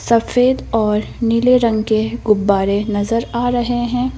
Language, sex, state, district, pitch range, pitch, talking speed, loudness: Hindi, female, Madhya Pradesh, Bhopal, 215-245 Hz, 230 Hz, 145 wpm, -16 LUFS